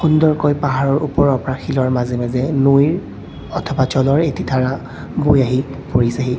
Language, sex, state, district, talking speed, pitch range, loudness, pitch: Assamese, male, Assam, Kamrup Metropolitan, 140 wpm, 130-145 Hz, -17 LUFS, 135 Hz